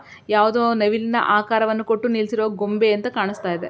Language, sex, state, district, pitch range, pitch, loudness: Kannada, female, Karnataka, Belgaum, 210-225 Hz, 220 Hz, -20 LUFS